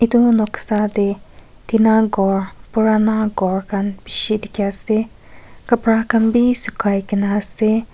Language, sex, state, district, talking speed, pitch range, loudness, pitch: Nagamese, female, Nagaland, Kohima, 145 wpm, 200-225 Hz, -17 LUFS, 215 Hz